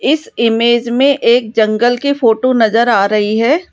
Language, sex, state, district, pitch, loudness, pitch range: Hindi, female, Rajasthan, Jaipur, 235 Hz, -12 LUFS, 225-255 Hz